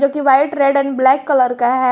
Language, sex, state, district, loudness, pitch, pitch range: Hindi, female, Jharkhand, Garhwa, -14 LUFS, 275 Hz, 260-280 Hz